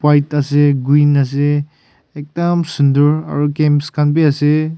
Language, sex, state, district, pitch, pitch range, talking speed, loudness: Nagamese, male, Nagaland, Kohima, 145 Hz, 145-150 Hz, 140 wpm, -14 LUFS